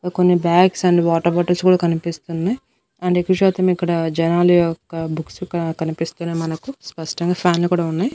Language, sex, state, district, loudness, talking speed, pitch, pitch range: Telugu, female, Andhra Pradesh, Annamaya, -18 LUFS, 160 wpm, 175 Hz, 165-180 Hz